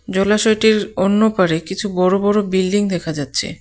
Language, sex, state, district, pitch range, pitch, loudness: Bengali, female, West Bengal, Cooch Behar, 185-210 Hz, 195 Hz, -17 LUFS